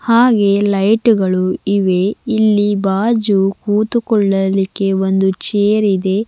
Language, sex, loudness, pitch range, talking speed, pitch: Kannada, female, -14 LUFS, 195-215 Hz, 85 wpm, 200 Hz